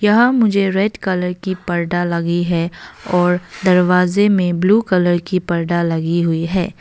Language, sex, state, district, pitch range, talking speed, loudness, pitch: Hindi, female, Arunachal Pradesh, Longding, 175-190 Hz, 160 wpm, -16 LUFS, 180 Hz